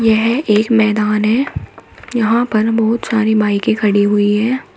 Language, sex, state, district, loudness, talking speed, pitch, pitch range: Hindi, female, Uttar Pradesh, Shamli, -14 LUFS, 150 wpm, 220 Hz, 210-230 Hz